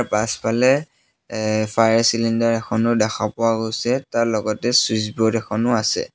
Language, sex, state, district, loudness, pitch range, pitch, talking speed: Assamese, male, Assam, Sonitpur, -19 LUFS, 110-115 Hz, 115 Hz, 125 wpm